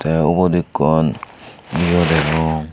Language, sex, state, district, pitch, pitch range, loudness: Chakma, male, Tripura, Unakoti, 80 Hz, 80-85 Hz, -17 LUFS